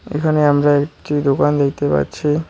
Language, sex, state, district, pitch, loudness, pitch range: Bengali, male, West Bengal, Cooch Behar, 145 Hz, -16 LUFS, 140-150 Hz